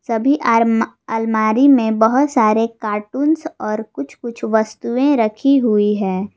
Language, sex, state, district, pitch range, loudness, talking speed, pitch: Hindi, female, Jharkhand, Garhwa, 215-260 Hz, -16 LUFS, 130 wpm, 225 Hz